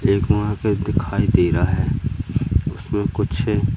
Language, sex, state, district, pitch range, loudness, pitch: Hindi, male, Madhya Pradesh, Katni, 95-105 Hz, -20 LUFS, 105 Hz